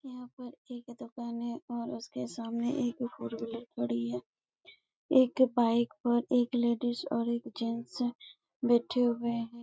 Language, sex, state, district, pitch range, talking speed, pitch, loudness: Hindi, female, Chhattisgarh, Bastar, 235-245 Hz, 155 wpm, 240 Hz, -32 LUFS